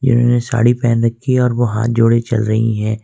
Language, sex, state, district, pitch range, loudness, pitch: Hindi, male, Jharkhand, Ranchi, 115-120 Hz, -15 LUFS, 115 Hz